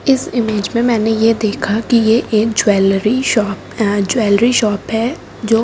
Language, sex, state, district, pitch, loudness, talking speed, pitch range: Hindi, female, Delhi, New Delhi, 225 Hz, -14 LUFS, 160 wpm, 210-235 Hz